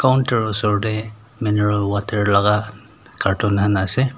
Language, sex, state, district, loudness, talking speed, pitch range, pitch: Nagamese, male, Nagaland, Dimapur, -19 LUFS, 130 wpm, 100-110 Hz, 105 Hz